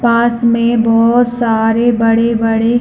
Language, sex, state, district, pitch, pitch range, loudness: Hindi, female, Chhattisgarh, Bilaspur, 235 Hz, 225-235 Hz, -12 LUFS